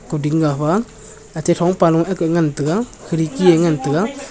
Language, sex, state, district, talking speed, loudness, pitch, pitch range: Wancho, male, Arunachal Pradesh, Longding, 180 wpm, -17 LUFS, 165 Hz, 155-185 Hz